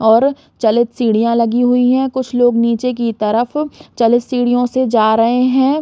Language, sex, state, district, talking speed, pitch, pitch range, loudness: Hindi, female, Chhattisgarh, Raigarh, 175 wpm, 245 Hz, 230-255 Hz, -14 LUFS